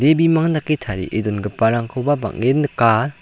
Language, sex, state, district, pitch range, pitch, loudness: Garo, male, Meghalaya, South Garo Hills, 110-150 Hz, 125 Hz, -18 LUFS